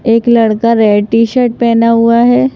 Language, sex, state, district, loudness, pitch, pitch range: Hindi, female, Madhya Pradesh, Bhopal, -9 LUFS, 230 Hz, 230-240 Hz